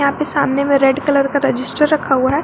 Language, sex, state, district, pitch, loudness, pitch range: Hindi, female, Jharkhand, Garhwa, 280 Hz, -15 LUFS, 270-290 Hz